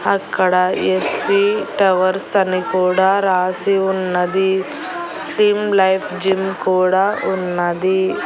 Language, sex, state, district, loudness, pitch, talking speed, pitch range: Telugu, female, Andhra Pradesh, Annamaya, -17 LUFS, 190 Hz, 95 wpm, 185-200 Hz